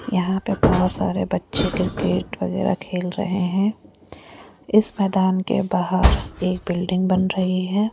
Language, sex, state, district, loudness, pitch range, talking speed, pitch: Hindi, female, Rajasthan, Jaipur, -21 LUFS, 185-195 Hz, 145 wpm, 185 Hz